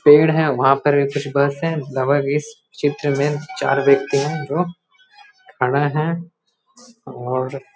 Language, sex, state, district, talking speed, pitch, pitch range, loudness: Hindi, male, Bihar, Muzaffarpur, 130 wpm, 145 Hz, 140-170 Hz, -19 LUFS